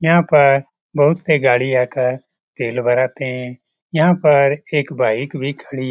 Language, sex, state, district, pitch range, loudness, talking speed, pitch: Hindi, male, Bihar, Lakhisarai, 125-150 Hz, -16 LUFS, 150 wpm, 140 Hz